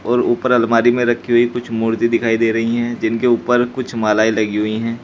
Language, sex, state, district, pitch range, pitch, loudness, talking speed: Hindi, male, Uttar Pradesh, Shamli, 115-120 Hz, 115 Hz, -16 LUFS, 225 wpm